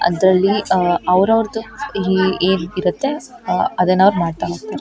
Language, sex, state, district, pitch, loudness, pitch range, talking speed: Kannada, female, Karnataka, Shimoga, 190 Hz, -17 LUFS, 180-220 Hz, 135 wpm